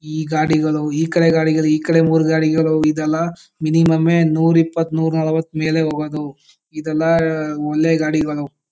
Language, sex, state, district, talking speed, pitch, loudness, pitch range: Kannada, male, Karnataka, Chamarajanagar, 140 wpm, 160 Hz, -17 LUFS, 155-160 Hz